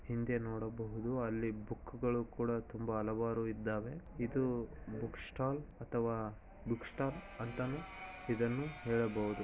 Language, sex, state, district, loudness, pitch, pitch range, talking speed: Kannada, male, Karnataka, Shimoga, -40 LUFS, 115 Hz, 110-125 Hz, 115 wpm